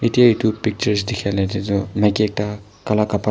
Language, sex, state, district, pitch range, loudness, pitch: Nagamese, male, Nagaland, Kohima, 100-110 Hz, -19 LUFS, 105 Hz